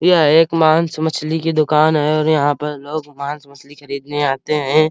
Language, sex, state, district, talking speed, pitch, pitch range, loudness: Hindi, male, Uttar Pradesh, Hamirpur, 195 wpm, 155 Hz, 145-155 Hz, -16 LUFS